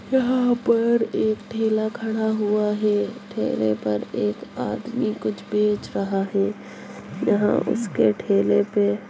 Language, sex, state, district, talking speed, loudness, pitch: Hindi, female, Bihar, Muzaffarpur, 125 wpm, -23 LUFS, 210 Hz